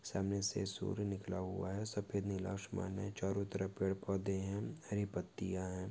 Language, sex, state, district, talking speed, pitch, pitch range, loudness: Hindi, male, Maharashtra, Pune, 180 wpm, 95 Hz, 95-100 Hz, -41 LUFS